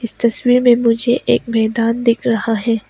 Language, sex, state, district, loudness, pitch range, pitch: Hindi, female, Arunachal Pradesh, Papum Pare, -15 LUFS, 230-240 Hz, 230 Hz